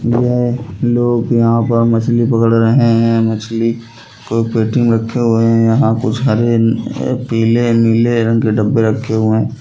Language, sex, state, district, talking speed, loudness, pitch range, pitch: Bhojpuri, male, Uttar Pradesh, Gorakhpur, 155 wpm, -13 LUFS, 115-120 Hz, 115 Hz